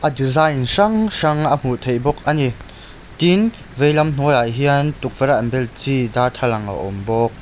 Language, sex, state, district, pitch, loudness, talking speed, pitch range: Mizo, male, Mizoram, Aizawl, 135 Hz, -17 LUFS, 185 wpm, 120-150 Hz